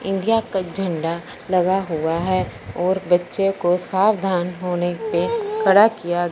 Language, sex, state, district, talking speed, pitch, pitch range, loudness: Hindi, male, Punjab, Fazilka, 135 wpm, 185 Hz, 175-195 Hz, -20 LUFS